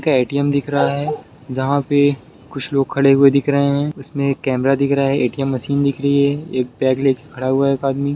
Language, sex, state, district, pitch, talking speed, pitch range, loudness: Hindi, male, Bihar, Sitamarhi, 140 Hz, 245 wpm, 135-140 Hz, -17 LUFS